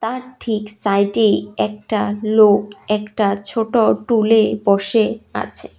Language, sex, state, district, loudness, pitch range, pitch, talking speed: Bengali, female, Tripura, West Tripura, -17 LUFS, 205-225 Hz, 215 Hz, 105 wpm